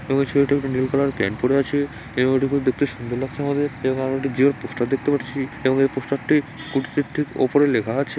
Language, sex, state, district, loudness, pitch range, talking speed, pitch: Bengali, male, West Bengal, Malda, -21 LUFS, 130-140 Hz, 205 wpm, 135 Hz